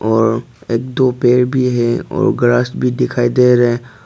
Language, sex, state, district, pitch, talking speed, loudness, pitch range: Hindi, male, Arunachal Pradesh, Papum Pare, 125 Hz, 175 wpm, -14 LUFS, 120-125 Hz